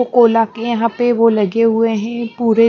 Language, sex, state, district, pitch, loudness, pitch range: Hindi, female, Punjab, Pathankot, 230 Hz, -15 LUFS, 225-235 Hz